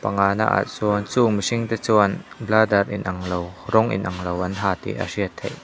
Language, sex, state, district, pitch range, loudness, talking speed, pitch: Mizo, male, Mizoram, Aizawl, 90-110 Hz, -22 LUFS, 190 wpm, 100 Hz